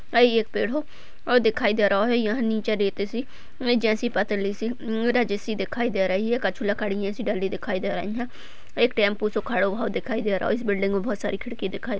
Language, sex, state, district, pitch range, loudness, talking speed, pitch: Hindi, female, Uttar Pradesh, Budaun, 200-235 Hz, -25 LUFS, 235 wpm, 215 Hz